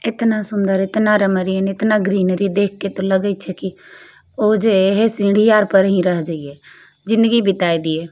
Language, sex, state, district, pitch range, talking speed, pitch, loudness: Maithili, female, Bihar, Begusarai, 190-215 Hz, 170 wpm, 195 Hz, -16 LUFS